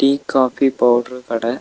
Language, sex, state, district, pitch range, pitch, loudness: Tamil, male, Tamil Nadu, Nilgiris, 120-135 Hz, 125 Hz, -17 LUFS